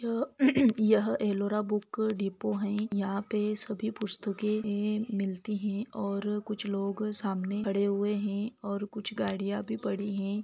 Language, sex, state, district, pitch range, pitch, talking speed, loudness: Hindi, female, Chhattisgarh, Bilaspur, 200-215 Hz, 210 Hz, 145 wpm, -31 LUFS